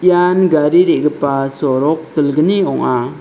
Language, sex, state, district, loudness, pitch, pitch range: Garo, male, Meghalaya, South Garo Hills, -14 LUFS, 155 Hz, 145-180 Hz